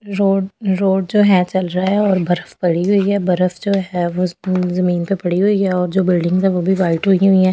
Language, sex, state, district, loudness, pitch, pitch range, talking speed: Hindi, female, Delhi, New Delhi, -16 LUFS, 185 Hz, 180-195 Hz, 255 wpm